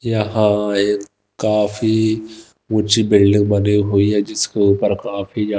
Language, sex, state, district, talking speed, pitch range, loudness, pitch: Hindi, male, Himachal Pradesh, Shimla, 130 wpm, 100-110 Hz, -17 LUFS, 105 Hz